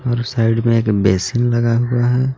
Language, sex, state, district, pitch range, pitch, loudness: Hindi, male, Jharkhand, Garhwa, 115-120 Hz, 120 Hz, -16 LUFS